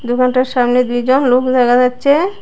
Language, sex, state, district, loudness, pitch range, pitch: Bengali, female, Tripura, West Tripura, -13 LUFS, 250-260 Hz, 250 Hz